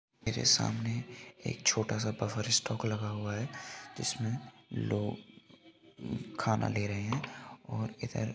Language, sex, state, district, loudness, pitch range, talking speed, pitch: Hindi, male, Rajasthan, Nagaur, -33 LUFS, 105-120 Hz, 130 wpm, 110 Hz